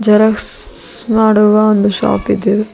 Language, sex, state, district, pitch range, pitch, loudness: Kannada, female, Karnataka, Bidar, 210-220 Hz, 215 Hz, -11 LUFS